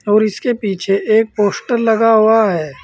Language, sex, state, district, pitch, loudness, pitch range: Hindi, male, Uttar Pradesh, Saharanpur, 215 Hz, -14 LUFS, 195-225 Hz